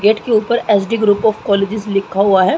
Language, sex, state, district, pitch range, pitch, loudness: Hindi, female, Uttar Pradesh, Muzaffarnagar, 200-220 Hz, 210 Hz, -15 LUFS